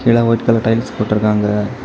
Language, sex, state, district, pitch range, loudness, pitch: Tamil, male, Tamil Nadu, Kanyakumari, 105-115 Hz, -15 LUFS, 115 Hz